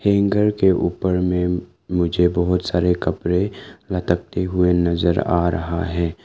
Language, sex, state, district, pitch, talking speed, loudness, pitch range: Hindi, male, Arunachal Pradesh, Lower Dibang Valley, 90 Hz, 145 wpm, -20 LUFS, 85-90 Hz